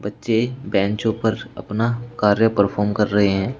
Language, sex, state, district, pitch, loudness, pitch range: Hindi, male, Uttar Pradesh, Shamli, 105 Hz, -20 LUFS, 100-115 Hz